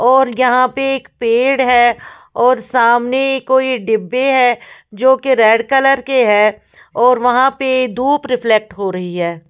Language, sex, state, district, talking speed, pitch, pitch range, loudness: Hindi, female, Bihar, Patna, 160 wpm, 250 Hz, 230-265 Hz, -13 LUFS